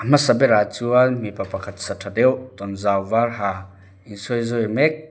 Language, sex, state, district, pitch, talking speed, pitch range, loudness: Mizo, male, Mizoram, Aizawl, 110 Hz, 150 wpm, 100-125 Hz, -20 LUFS